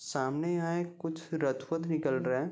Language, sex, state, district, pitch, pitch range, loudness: Hindi, male, Bihar, Gopalganj, 160 Hz, 135-170 Hz, -33 LUFS